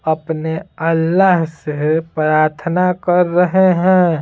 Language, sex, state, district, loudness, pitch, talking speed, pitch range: Hindi, male, Bihar, Patna, -15 LUFS, 165 Hz, 100 wpm, 160-180 Hz